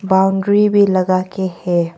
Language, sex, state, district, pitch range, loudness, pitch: Hindi, female, Arunachal Pradesh, Longding, 185-195 Hz, -15 LUFS, 190 Hz